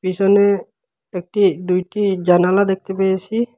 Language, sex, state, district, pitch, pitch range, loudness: Bengali, male, Assam, Hailakandi, 195 Hz, 185-200 Hz, -17 LUFS